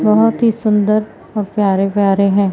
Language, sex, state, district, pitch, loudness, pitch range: Hindi, female, Madhya Pradesh, Umaria, 210 Hz, -15 LUFS, 200-215 Hz